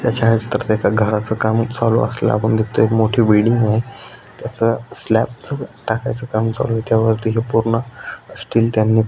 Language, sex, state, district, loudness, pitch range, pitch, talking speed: Marathi, male, Maharashtra, Aurangabad, -17 LUFS, 110-115 Hz, 115 Hz, 160 wpm